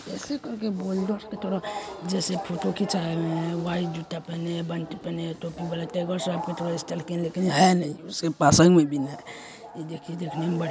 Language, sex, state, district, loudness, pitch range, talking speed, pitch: Hindi, male, Bihar, Saharsa, -26 LUFS, 165-190 Hz, 215 wpm, 170 Hz